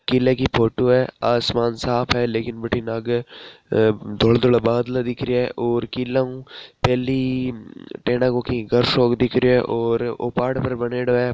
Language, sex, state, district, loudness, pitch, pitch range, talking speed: Marwari, male, Rajasthan, Nagaur, -20 LUFS, 125 Hz, 120-125 Hz, 155 wpm